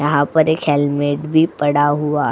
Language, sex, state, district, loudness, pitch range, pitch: Hindi, female, Goa, North and South Goa, -16 LUFS, 145-155 Hz, 145 Hz